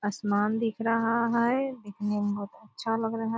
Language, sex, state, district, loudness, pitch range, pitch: Hindi, female, Bihar, Purnia, -28 LUFS, 205-230 Hz, 225 Hz